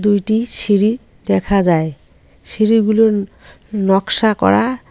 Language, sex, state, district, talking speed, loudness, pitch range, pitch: Bengali, female, West Bengal, Cooch Behar, 85 wpm, -15 LUFS, 180-220 Hz, 205 Hz